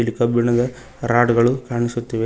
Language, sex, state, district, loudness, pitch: Kannada, male, Karnataka, Koppal, -19 LUFS, 120 Hz